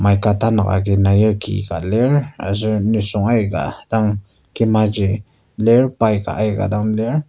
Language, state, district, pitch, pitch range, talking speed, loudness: Ao, Nagaland, Kohima, 105 Hz, 100-110 Hz, 150 wpm, -17 LUFS